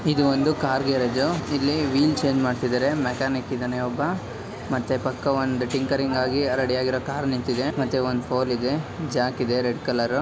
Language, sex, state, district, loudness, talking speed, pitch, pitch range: Kannada, male, Karnataka, Bellary, -24 LUFS, 165 wpm, 130 Hz, 125-140 Hz